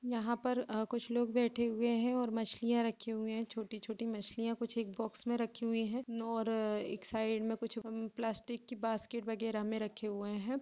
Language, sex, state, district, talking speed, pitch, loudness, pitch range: Hindi, female, Chhattisgarh, Kabirdham, 200 wpm, 225 Hz, -38 LUFS, 220-235 Hz